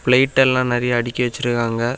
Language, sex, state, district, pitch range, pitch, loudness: Tamil, male, Tamil Nadu, Kanyakumari, 120-125 Hz, 125 Hz, -18 LUFS